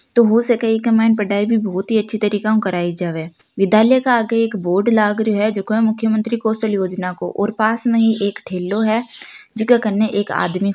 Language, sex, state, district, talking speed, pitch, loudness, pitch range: Marwari, female, Rajasthan, Nagaur, 225 wpm, 215 Hz, -17 LUFS, 200-225 Hz